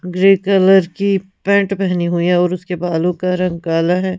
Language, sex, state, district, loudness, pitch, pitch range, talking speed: Hindi, female, Punjab, Pathankot, -15 LUFS, 180 Hz, 175-195 Hz, 200 wpm